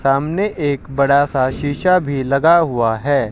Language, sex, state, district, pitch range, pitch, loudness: Hindi, male, Haryana, Jhajjar, 135-150 Hz, 140 Hz, -16 LUFS